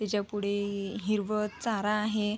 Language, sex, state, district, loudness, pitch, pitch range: Marathi, female, Maharashtra, Sindhudurg, -31 LUFS, 210 Hz, 205-215 Hz